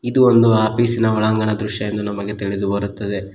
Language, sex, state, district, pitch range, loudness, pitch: Kannada, male, Karnataka, Koppal, 100-115 Hz, -17 LUFS, 105 Hz